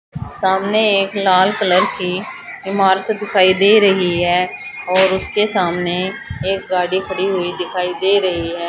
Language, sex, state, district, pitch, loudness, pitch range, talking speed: Hindi, female, Haryana, Charkhi Dadri, 190 Hz, -16 LUFS, 180-195 Hz, 145 wpm